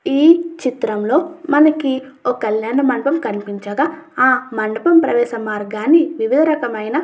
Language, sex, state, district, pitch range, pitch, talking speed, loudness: Telugu, female, Andhra Pradesh, Chittoor, 225-315 Hz, 270 Hz, 120 wpm, -16 LUFS